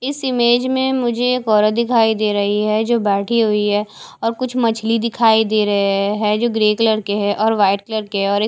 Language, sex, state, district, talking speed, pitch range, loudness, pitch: Hindi, female, Haryana, Charkhi Dadri, 225 wpm, 210-235 Hz, -17 LUFS, 220 Hz